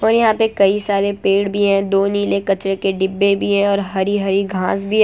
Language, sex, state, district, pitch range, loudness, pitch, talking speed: Hindi, female, Gujarat, Valsad, 195-205 Hz, -17 LUFS, 200 Hz, 250 wpm